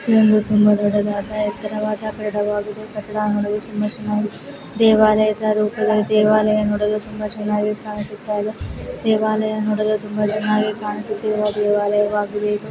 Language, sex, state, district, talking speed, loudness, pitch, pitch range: Kannada, female, Karnataka, Mysore, 125 wpm, -19 LUFS, 210 Hz, 210-215 Hz